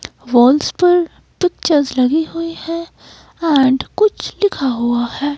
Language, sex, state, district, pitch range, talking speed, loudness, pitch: Hindi, female, Himachal Pradesh, Shimla, 260-335 Hz, 120 wpm, -16 LUFS, 300 Hz